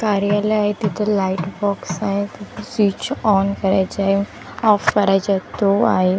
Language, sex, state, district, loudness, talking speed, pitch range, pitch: Marathi, female, Maharashtra, Gondia, -19 LUFS, 135 wpm, 195-210 Hz, 200 Hz